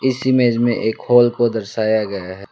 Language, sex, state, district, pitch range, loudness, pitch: Hindi, male, West Bengal, Alipurduar, 110-120 Hz, -17 LUFS, 115 Hz